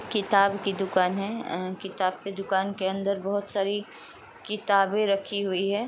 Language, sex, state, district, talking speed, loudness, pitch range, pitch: Hindi, female, Bihar, Jamui, 165 wpm, -27 LUFS, 195-200 Hz, 195 Hz